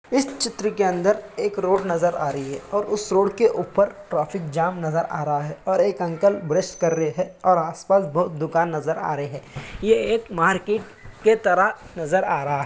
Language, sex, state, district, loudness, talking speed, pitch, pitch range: Hindi, male, Uttar Pradesh, Muzaffarnagar, -22 LUFS, 215 wpm, 185 Hz, 160-200 Hz